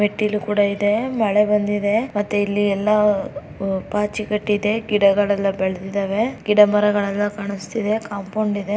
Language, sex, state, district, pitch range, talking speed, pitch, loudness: Kannada, female, Karnataka, Dharwad, 200-210 Hz, 105 wpm, 205 Hz, -20 LUFS